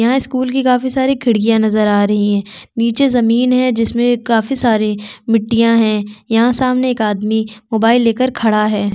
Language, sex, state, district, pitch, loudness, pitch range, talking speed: Hindi, female, Chhattisgarh, Sukma, 230 Hz, -14 LUFS, 215-250 Hz, 180 wpm